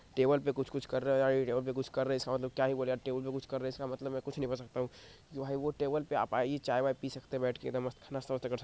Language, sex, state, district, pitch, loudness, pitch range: Hindi, male, Bihar, Madhepura, 130 Hz, -35 LUFS, 130-135 Hz